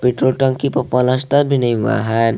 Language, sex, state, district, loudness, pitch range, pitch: Hindi, male, Jharkhand, Garhwa, -16 LUFS, 115-135 Hz, 125 Hz